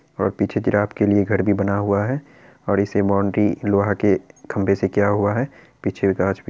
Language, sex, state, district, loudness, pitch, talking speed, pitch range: Hindi, male, Bihar, Araria, -20 LUFS, 100 Hz, 205 wpm, 100-105 Hz